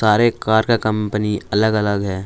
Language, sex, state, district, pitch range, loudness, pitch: Hindi, male, Jharkhand, Palamu, 105-110 Hz, -18 LUFS, 105 Hz